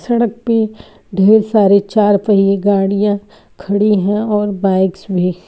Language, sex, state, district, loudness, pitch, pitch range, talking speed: Hindi, female, Uttar Pradesh, Etah, -14 LUFS, 205 Hz, 195-210 Hz, 120 wpm